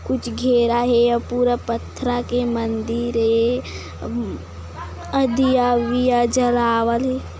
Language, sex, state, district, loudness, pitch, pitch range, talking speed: Hindi, female, Chhattisgarh, Kabirdham, -20 LUFS, 240 Hz, 230-245 Hz, 115 wpm